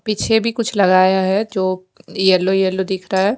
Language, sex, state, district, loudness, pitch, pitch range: Hindi, female, Punjab, Kapurthala, -16 LUFS, 190 Hz, 185-210 Hz